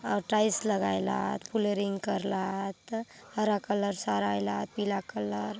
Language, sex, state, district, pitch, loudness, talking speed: Halbi, female, Chhattisgarh, Bastar, 195 Hz, -31 LUFS, 160 wpm